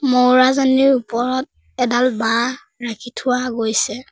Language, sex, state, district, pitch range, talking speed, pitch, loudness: Assamese, female, Assam, Sonitpur, 240-255 Hz, 100 wpm, 250 Hz, -17 LUFS